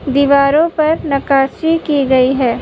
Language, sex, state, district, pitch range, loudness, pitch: Hindi, female, Uttar Pradesh, Budaun, 270-310 Hz, -13 LUFS, 280 Hz